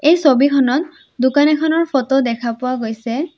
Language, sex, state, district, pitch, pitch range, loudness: Assamese, female, Assam, Sonitpur, 275 Hz, 255-305 Hz, -16 LUFS